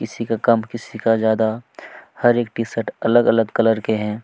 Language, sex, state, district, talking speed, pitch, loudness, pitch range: Hindi, male, Chhattisgarh, Kabirdham, 185 wpm, 115 Hz, -19 LUFS, 110-115 Hz